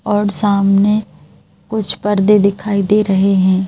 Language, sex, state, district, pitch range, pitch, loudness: Hindi, male, Madhya Pradesh, Bhopal, 195-210 Hz, 200 Hz, -14 LUFS